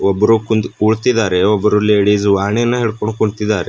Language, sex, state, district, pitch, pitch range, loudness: Kannada, male, Karnataka, Bidar, 105 Hz, 105-110 Hz, -14 LUFS